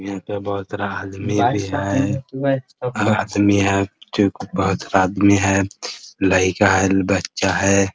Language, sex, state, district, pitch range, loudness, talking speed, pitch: Hindi, male, Bihar, Muzaffarpur, 95-105 Hz, -19 LUFS, 130 wpm, 100 Hz